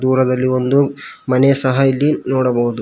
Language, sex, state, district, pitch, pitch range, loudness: Kannada, male, Karnataka, Koppal, 130 Hz, 130-135 Hz, -15 LUFS